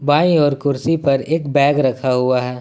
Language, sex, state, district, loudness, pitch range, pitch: Hindi, male, Jharkhand, Ranchi, -16 LUFS, 130-145 Hz, 140 Hz